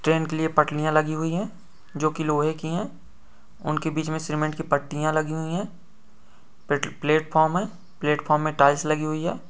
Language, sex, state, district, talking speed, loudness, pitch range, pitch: Hindi, male, Jharkhand, Sahebganj, 185 wpm, -24 LUFS, 150-160 Hz, 155 Hz